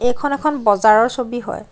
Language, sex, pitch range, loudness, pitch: Assamese, female, 220-280 Hz, -17 LUFS, 245 Hz